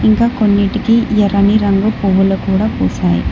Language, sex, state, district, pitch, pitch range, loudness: Telugu, female, Telangana, Hyderabad, 200 Hz, 195-215 Hz, -13 LUFS